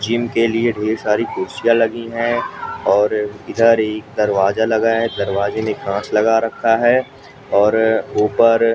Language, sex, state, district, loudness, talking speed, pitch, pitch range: Hindi, male, Maharashtra, Mumbai Suburban, -17 LUFS, 150 wpm, 115 Hz, 105-115 Hz